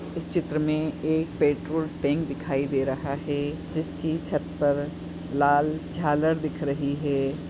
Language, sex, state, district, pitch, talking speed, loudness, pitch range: Hindi, female, Goa, North and South Goa, 150 Hz, 145 wpm, -27 LUFS, 145-155 Hz